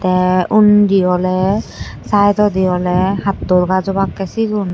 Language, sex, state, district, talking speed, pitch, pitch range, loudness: Chakma, female, Tripura, West Tripura, 115 wpm, 190 Hz, 185-205 Hz, -14 LUFS